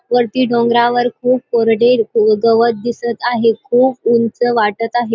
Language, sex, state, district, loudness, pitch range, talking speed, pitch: Marathi, female, Maharashtra, Dhule, -14 LUFS, 230-245 Hz, 130 wpm, 235 Hz